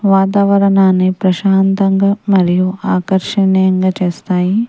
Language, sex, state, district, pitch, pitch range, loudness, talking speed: Telugu, female, Telangana, Mahabubabad, 190 Hz, 185-195 Hz, -13 LUFS, 65 wpm